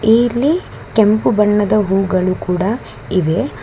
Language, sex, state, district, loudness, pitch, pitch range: Kannada, female, Karnataka, Bangalore, -15 LUFS, 210 Hz, 185-225 Hz